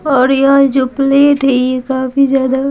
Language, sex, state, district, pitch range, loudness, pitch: Hindi, female, Bihar, Patna, 260-275 Hz, -11 LUFS, 270 Hz